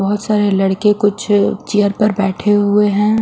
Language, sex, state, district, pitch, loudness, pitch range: Hindi, female, Haryana, Rohtak, 205 Hz, -14 LUFS, 200-210 Hz